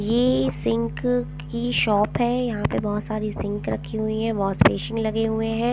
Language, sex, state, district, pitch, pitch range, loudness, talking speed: Hindi, female, Punjab, Pathankot, 215 Hz, 170-225 Hz, -23 LUFS, 190 wpm